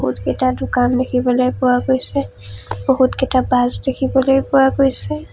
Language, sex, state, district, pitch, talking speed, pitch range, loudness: Assamese, female, Assam, Kamrup Metropolitan, 255 Hz, 110 wpm, 245-265 Hz, -17 LUFS